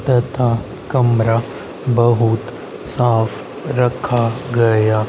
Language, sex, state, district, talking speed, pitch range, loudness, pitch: Hindi, male, Haryana, Rohtak, 70 wpm, 115-125 Hz, -17 LUFS, 120 Hz